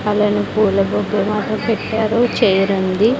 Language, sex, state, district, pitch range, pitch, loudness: Telugu, female, Andhra Pradesh, Sri Satya Sai, 200-220 Hz, 210 Hz, -17 LUFS